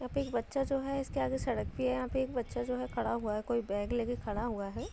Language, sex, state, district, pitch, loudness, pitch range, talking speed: Hindi, female, Uttar Pradesh, Deoria, 240 Hz, -35 LUFS, 205-260 Hz, 330 wpm